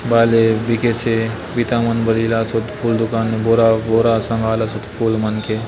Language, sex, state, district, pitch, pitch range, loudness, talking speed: Chhattisgarhi, male, Chhattisgarh, Bastar, 115 Hz, 110-115 Hz, -16 LUFS, 160 wpm